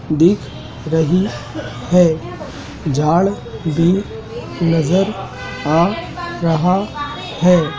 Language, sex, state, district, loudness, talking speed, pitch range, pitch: Hindi, male, Madhya Pradesh, Dhar, -17 LUFS, 70 wpm, 140-180 Hz, 165 Hz